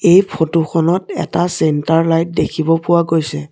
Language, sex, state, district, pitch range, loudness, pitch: Assamese, male, Assam, Sonitpur, 160-170 Hz, -15 LUFS, 165 Hz